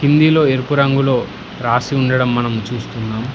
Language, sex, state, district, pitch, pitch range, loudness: Telugu, male, Telangana, Hyderabad, 130 Hz, 120-140 Hz, -16 LUFS